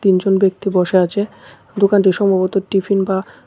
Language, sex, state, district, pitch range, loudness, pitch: Bengali, male, Tripura, West Tripura, 190-200 Hz, -16 LUFS, 195 Hz